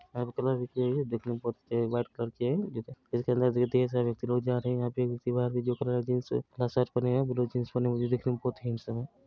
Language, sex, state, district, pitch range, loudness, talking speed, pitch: Maithili, male, Bihar, Araria, 120-125 Hz, -31 LUFS, 270 wpm, 125 Hz